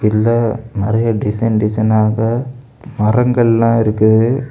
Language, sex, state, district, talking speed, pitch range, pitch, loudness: Tamil, male, Tamil Nadu, Kanyakumari, 80 wpm, 110-120 Hz, 115 Hz, -14 LUFS